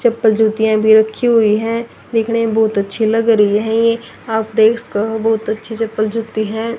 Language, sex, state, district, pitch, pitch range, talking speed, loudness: Hindi, female, Haryana, Rohtak, 220 Hz, 220-230 Hz, 185 wpm, -15 LUFS